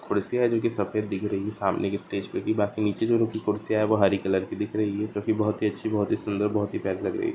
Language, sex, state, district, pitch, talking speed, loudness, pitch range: Hindi, male, Maharashtra, Aurangabad, 105 Hz, 325 wpm, -26 LUFS, 100-110 Hz